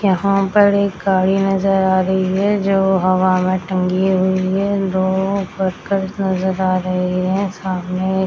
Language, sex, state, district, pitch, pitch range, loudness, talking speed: Hindi, female, Bihar, Madhepura, 190 Hz, 185-195 Hz, -17 LUFS, 150 wpm